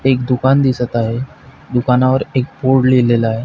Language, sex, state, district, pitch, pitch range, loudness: Marathi, male, Maharashtra, Pune, 125 Hz, 125-130 Hz, -15 LUFS